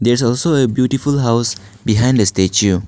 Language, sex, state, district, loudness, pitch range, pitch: English, male, Arunachal Pradesh, Lower Dibang Valley, -15 LUFS, 105-130 Hz, 120 Hz